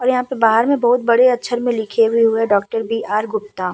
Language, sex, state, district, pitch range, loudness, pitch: Hindi, female, Uttar Pradesh, Budaun, 220-245 Hz, -16 LUFS, 225 Hz